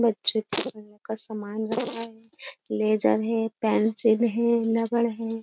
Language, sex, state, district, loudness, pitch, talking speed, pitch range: Hindi, female, Uttar Pradesh, Jyotiba Phule Nagar, -23 LUFS, 225 Hz, 130 wpm, 215-230 Hz